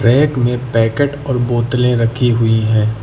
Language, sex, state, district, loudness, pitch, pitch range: Hindi, male, Uttar Pradesh, Lucknow, -15 LUFS, 120 Hz, 115-125 Hz